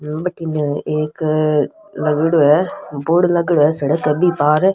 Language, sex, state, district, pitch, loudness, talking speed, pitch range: Rajasthani, female, Rajasthan, Nagaur, 155 Hz, -17 LUFS, 150 wpm, 150-170 Hz